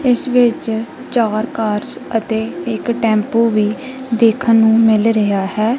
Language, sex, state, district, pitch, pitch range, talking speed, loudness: Punjabi, female, Punjab, Kapurthala, 225 Hz, 215-235 Hz, 135 wpm, -15 LUFS